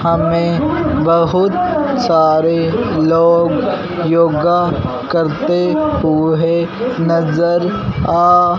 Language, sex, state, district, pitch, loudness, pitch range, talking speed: Hindi, male, Punjab, Fazilka, 170 Hz, -14 LUFS, 165-180 Hz, 65 wpm